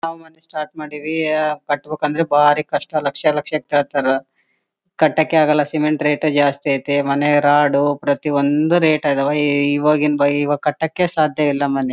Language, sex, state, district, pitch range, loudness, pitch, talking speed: Kannada, female, Karnataka, Bellary, 145-155 Hz, -17 LUFS, 150 Hz, 155 wpm